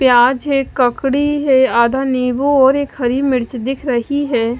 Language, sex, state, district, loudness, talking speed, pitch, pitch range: Hindi, female, Maharashtra, Mumbai Suburban, -15 LUFS, 155 wpm, 265 Hz, 245-275 Hz